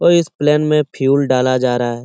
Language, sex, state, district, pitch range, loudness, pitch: Hindi, male, Bihar, Lakhisarai, 130-150 Hz, -15 LUFS, 140 Hz